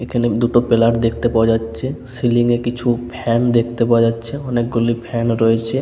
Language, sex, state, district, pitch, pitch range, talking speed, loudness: Bengali, male, West Bengal, Paschim Medinipur, 120 Hz, 115-120 Hz, 175 wpm, -17 LUFS